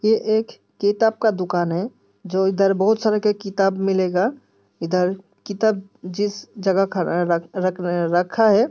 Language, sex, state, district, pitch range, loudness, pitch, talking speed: Hindi, female, Uttar Pradesh, Hamirpur, 180-215 Hz, -21 LUFS, 195 Hz, 160 wpm